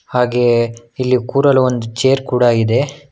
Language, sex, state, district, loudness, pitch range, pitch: Kannada, male, Karnataka, Bangalore, -15 LUFS, 115-135 Hz, 125 Hz